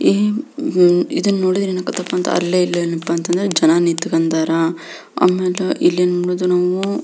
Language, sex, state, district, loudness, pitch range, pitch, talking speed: Kannada, female, Karnataka, Belgaum, -17 LUFS, 170-185 Hz, 180 Hz, 155 wpm